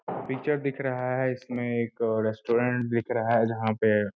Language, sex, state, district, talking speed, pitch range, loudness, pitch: Hindi, male, Uttar Pradesh, Gorakhpur, 185 wpm, 110-130 Hz, -27 LUFS, 120 Hz